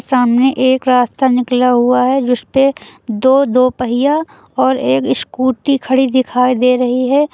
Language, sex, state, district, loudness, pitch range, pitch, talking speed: Hindi, female, Uttar Pradesh, Lucknow, -13 LUFS, 250-265 Hz, 255 Hz, 140 wpm